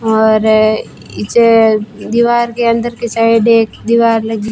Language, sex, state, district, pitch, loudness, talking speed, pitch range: Hindi, female, Rajasthan, Bikaner, 225 Hz, -11 LUFS, 120 wpm, 220-235 Hz